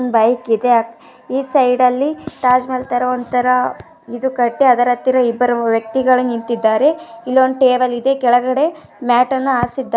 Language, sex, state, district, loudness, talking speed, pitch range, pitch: Kannada, female, Karnataka, Dharwad, -15 LUFS, 150 wpm, 240-260 Hz, 250 Hz